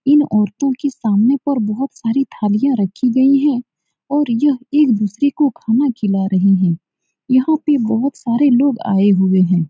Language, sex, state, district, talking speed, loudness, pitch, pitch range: Hindi, female, Uttar Pradesh, Muzaffarnagar, 175 wpm, -16 LUFS, 245 Hz, 210-280 Hz